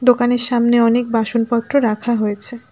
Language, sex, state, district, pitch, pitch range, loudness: Bengali, female, West Bengal, Alipurduar, 235 Hz, 230-245 Hz, -16 LUFS